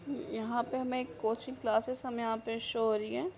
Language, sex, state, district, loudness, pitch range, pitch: Hindi, female, Chhattisgarh, Raigarh, -35 LUFS, 225-255 Hz, 240 Hz